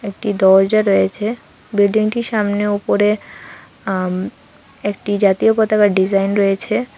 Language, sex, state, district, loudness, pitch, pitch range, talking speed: Bengali, female, Tripura, West Tripura, -16 LUFS, 205 Hz, 195-215 Hz, 110 wpm